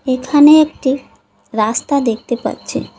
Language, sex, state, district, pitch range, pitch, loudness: Bengali, female, West Bengal, Cooch Behar, 240-295 Hz, 265 Hz, -14 LUFS